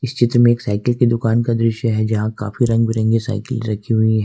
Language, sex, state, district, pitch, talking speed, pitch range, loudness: Hindi, male, Jharkhand, Ranchi, 115 Hz, 240 wpm, 110-120 Hz, -17 LUFS